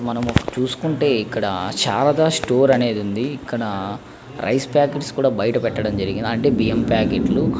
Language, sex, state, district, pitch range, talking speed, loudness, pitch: Telugu, male, Andhra Pradesh, Krishna, 105-135 Hz, 140 wpm, -20 LUFS, 125 Hz